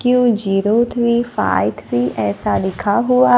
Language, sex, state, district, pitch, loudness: Hindi, female, Maharashtra, Gondia, 195 Hz, -17 LUFS